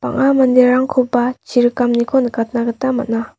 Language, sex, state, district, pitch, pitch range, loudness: Garo, female, Meghalaya, West Garo Hills, 250 Hz, 240-260 Hz, -15 LUFS